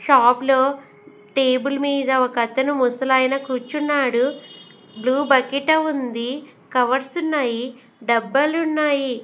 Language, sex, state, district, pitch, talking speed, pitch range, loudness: Telugu, female, Andhra Pradesh, Sri Satya Sai, 265 Hz, 95 wpm, 250-280 Hz, -20 LUFS